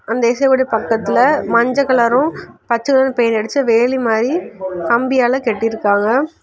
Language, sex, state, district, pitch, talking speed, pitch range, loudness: Tamil, female, Tamil Nadu, Kanyakumari, 235 Hz, 120 wpm, 225-260 Hz, -15 LUFS